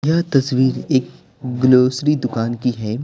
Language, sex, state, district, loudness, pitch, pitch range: Hindi, male, Bihar, Patna, -17 LUFS, 130 Hz, 125-135 Hz